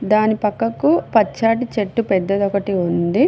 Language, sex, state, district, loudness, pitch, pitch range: Telugu, female, Telangana, Mahabubabad, -18 LUFS, 215 Hz, 200-230 Hz